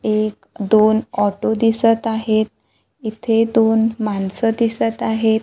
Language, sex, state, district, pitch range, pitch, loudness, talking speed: Marathi, female, Maharashtra, Gondia, 215-225 Hz, 220 Hz, -17 LUFS, 110 wpm